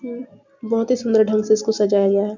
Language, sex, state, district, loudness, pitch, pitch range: Hindi, female, Chhattisgarh, Bastar, -18 LUFS, 220 Hz, 210-240 Hz